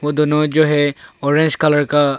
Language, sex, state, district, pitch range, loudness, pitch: Hindi, male, Arunachal Pradesh, Longding, 145-150 Hz, -15 LUFS, 150 Hz